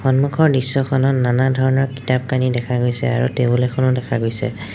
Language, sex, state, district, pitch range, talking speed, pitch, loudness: Assamese, male, Assam, Sonitpur, 125-130 Hz, 150 wpm, 130 Hz, -18 LUFS